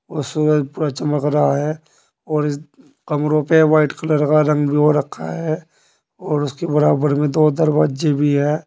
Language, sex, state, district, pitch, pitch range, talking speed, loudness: Hindi, male, Uttar Pradesh, Saharanpur, 150 Hz, 145-155 Hz, 180 wpm, -18 LUFS